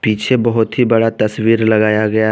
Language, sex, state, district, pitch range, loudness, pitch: Hindi, male, Jharkhand, Garhwa, 110-115 Hz, -14 LUFS, 110 Hz